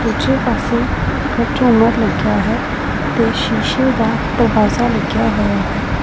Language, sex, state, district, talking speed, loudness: Punjabi, female, Punjab, Pathankot, 120 wpm, -15 LUFS